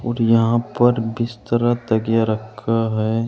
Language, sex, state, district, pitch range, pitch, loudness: Hindi, male, Uttar Pradesh, Saharanpur, 110-120 Hz, 115 Hz, -19 LUFS